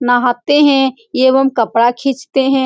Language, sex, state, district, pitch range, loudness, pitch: Hindi, female, Bihar, Saran, 245-270 Hz, -13 LUFS, 260 Hz